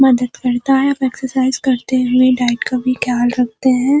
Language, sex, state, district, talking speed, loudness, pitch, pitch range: Hindi, female, Uttarakhand, Uttarkashi, 180 wpm, -15 LUFS, 255 Hz, 250-260 Hz